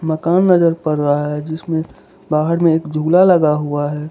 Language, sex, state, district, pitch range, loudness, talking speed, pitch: Hindi, male, Gujarat, Valsad, 150-170 Hz, -15 LUFS, 190 wpm, 160 Hz